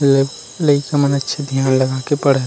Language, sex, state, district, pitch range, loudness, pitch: Chhattisgarhi, male, Chhattisgarh, Rajnandgaon, 135-145 Hz, -17 LUFS, 140 Hz